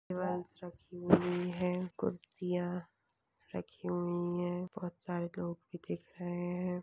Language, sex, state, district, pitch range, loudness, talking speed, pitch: Hindi, female, Chhattisgarh, Balrampur, 175-180 Hz, -37 LUFS, 130 wpm, 180 Hz